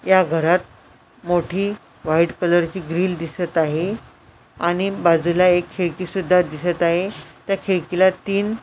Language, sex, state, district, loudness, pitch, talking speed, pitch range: Marathi, female, Maharashtra, Washim, -20 LUFS, 175 Hz, 140 wpm, 170-190 Hz